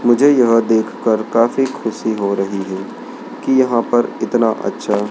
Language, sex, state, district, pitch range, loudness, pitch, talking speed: Hindi, male, Madhya Pradesh, Dhar, 110-120 Hz, -16 LUFS, 115 Hz, 150 wpm